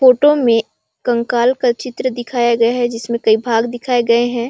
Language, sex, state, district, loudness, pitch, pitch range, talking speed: Hindi, female, Chhattisgarh, Sarguja, -16 LUFS, 240 Hz, 235-245 Hz, 185 wpm